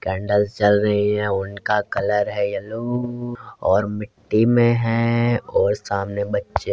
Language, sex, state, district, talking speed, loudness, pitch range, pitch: Hindi, male, Uttar Pradesh, Varanasi, 145 wpm, -20 LUFS, 100-120 Hz, 105 Hz